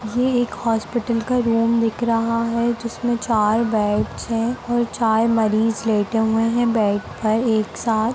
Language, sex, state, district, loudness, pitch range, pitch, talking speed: Hindi, female, Bihar, Darbhanga, -20 LUFS, 220-235 Hz, 230 Hz, 160 wpm